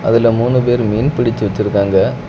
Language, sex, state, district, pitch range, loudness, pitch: Tamil, male, Tamil Nadu, Kanyakumari, 100-120 Hz, -14 LUFS, 115 Hz